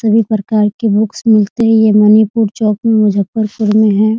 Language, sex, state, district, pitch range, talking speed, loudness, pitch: Hindi, female, Bihar, Muzaffarpur, 210-220 Hz, 200 wpm, -11 LUFS, 215 Hz